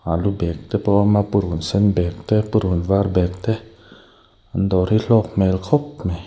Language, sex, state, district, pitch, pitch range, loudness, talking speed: Mizo, male, Mizoram, Aizawl, 100 Hz, 90-110 Hz, -19 LUFS, 210 wpm